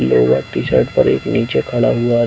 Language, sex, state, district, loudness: Hindi, male, Chhattisgarh, Bilaspur, -15 LUFS